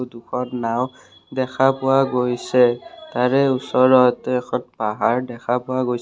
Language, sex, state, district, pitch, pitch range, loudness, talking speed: Assamese, male, Assam, Kamrup Metropolitan, 125 Hz, 125-130 Hz, -20 LUFS, 120 wpm